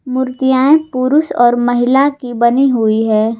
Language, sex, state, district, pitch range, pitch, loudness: Hindi, female, Jharkhand, Garhwa, 235-265 Hz, 255 Hz, -13 LUFS